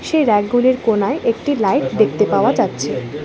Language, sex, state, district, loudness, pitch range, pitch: Bengali, female, West Bengal, Alipurduar, -16 LUFS, 220-265 Hz, 240 Hz